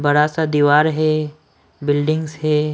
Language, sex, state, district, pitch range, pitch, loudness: Hindi, female, Maharashtra, Washim, 150-155 Hz, 150 Hz, -17 LUFS